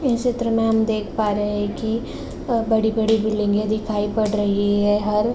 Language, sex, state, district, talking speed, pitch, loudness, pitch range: Hindi, female, Uttar Pradesh, Gorakhpur, 200 wpm, 215 Hz, -21 LUFS, 210-225 Hz